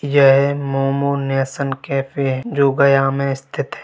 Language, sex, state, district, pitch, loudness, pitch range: Hindi, male, Bihar, Gaya, 135 Hz, -17 LUFS, 135-140 Hz